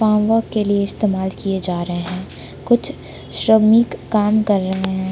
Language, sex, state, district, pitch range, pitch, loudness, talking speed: Hindi, female, Jharkhand, Palamu, 190-220 Hz, 205 Hz, -18 LUFS, 165 wpm